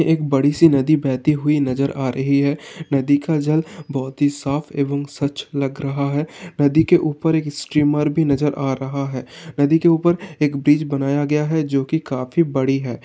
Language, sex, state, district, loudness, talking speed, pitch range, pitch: Hindi, male, Uttar Pradesh, Hamirpur, -19 LUFS, 200 wpm, 140-155 Hz, 145 Hz